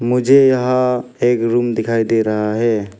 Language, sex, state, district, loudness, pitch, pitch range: Hindi, male, Arunachal Pradesh, Papum Pare, -15 LUFS, 120 Hz, 110-125 Hz